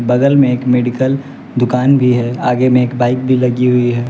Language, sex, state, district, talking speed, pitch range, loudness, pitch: Hindi, male, Bihar, West Champaran, 220 wpm, 125-130 Hz, -13 LUFS, 125 Hz